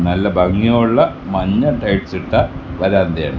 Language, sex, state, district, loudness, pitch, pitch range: Malayalam, male, Kerala, Kasaragod, -16 LUFS, 95 Hz, 90-105 Hz